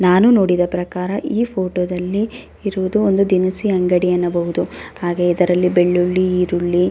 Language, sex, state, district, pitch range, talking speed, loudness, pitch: Kannada, female, Karnataka, Raichur, 180-195 Hz, 140 wpm, -17 LUFS, 180 Hz